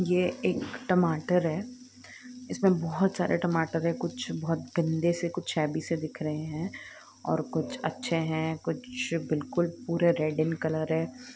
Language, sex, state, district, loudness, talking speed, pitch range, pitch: Hindi, female, Andhra Pradesh, Guntur, -29 LUFS, 120 wpm, 160-180 Hz, 170 Hz